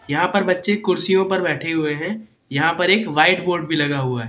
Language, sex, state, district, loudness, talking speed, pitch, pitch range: Hindi, male, Madhya Pradesh, Katni, -19 LUFS, 235 wpm, 180 Hz, 155-190 Hz